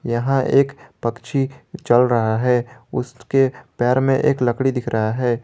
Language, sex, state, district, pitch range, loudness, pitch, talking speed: Hindi, male, Jharkhand, Garhwa, 120-135 Hz, -19 LUFS, 125 Hz, 155 wpm